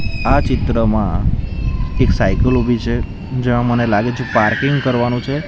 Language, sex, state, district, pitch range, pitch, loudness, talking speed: Gujarati, male, Gujarat, Gandhinagar, 105-125 Hz, 120 Hz, -17 LUFS, 140 wpm